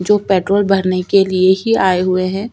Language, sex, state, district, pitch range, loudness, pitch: Hindi, female, Chhattisgarh, Sukma, 185-200 Hz, -14 LUFS, 190 Hz